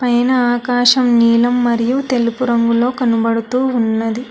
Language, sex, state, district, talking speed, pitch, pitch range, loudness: Telugu, female, Telangana, Hyderabad, 110 wpm, 240 Hz, 230-250 Hz, -14 LUFS